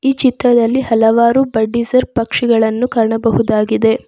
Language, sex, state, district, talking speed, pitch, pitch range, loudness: Kannada, female, Karnataka, Bangalore, 90 wpm, 235 Hz, 225-250 Hz, -13 LUFS